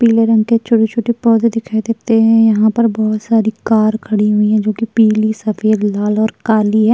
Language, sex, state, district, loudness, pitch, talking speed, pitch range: Hindi, female, Uttar Pradesh, Jyotiba Phule Nagar, -13 LUFS, 220 Hz, 205 wpm, 215-225 Hz